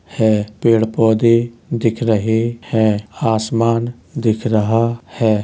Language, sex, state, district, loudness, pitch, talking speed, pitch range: Hindi, male, Uttar Pradesh, Hamirpur, -17 LUFS, 115 Hz, 100 wpm, 110-115 Hz